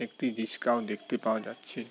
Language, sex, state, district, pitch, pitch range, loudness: Bengali, male, West Bengal, Jalpaiguri, 115 Hz, 110-120 Hz, -32 LUFS